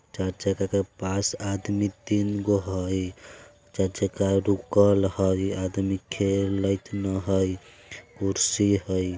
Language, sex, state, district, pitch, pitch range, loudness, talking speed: Bajjika, male, Bihar, Vaishali, 100 Hz, 95-100 Hz, -26 LUFS, 120 wpm